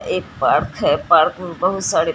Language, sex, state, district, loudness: Hindi, female, Bihar, Katihar, -17 LUFS